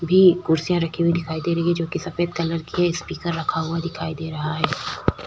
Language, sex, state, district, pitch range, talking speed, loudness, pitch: Hindi, female, Uttar Pradesh, Jyotiba Phule Nagar, 160-175 Hz, 230 wpm, -22 LUFS, 165 Hz